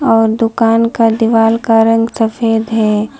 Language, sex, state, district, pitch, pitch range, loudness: Hindi, female, West Bengal, Alipurduar, 225 Hz, 225-230 Hz, -12 LUFS